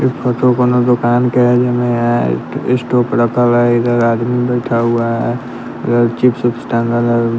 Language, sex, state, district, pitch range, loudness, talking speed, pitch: Hindi, male, Bihar, West Champaran, 120-125 Hz, -14 LUFS, 170 wpm, 120 Hz